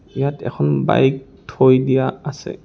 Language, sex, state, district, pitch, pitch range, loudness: Assamese, male, Assam, Kamrup Metropolitan, 130 Hz, 125-135 Hz, -17 LUFS